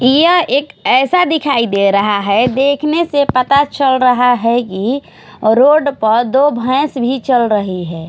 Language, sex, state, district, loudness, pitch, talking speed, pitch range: Hindi, female, Odisha, Khordha, -13 LUFS, 255 Hz, 165 wpm, 230-285 Hz